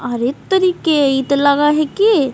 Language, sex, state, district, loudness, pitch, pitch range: Hindi, female, Bihar, Jamui, -15 LUFS, 285 Hz, 270-330 Hz